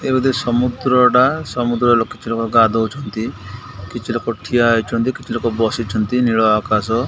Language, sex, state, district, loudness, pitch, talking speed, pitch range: Odia, male, Odisha, Khordha, -17 LUFS, 115 Hz, 150 wpm, 115-125 Hz